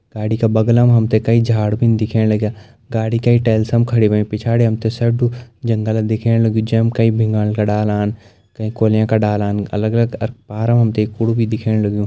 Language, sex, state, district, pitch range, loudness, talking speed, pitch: Garhwali, male, Uttarakhand, Uttarkashi, 105-115 Hz, -16 LUFS, 220 wpm, 110 Hz